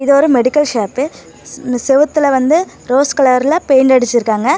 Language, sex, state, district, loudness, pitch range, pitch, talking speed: Tamil, female, Tamil Nadu, Namakkal, -12 LUFS, 250-290 Hz, 270 Hz, 145 wpm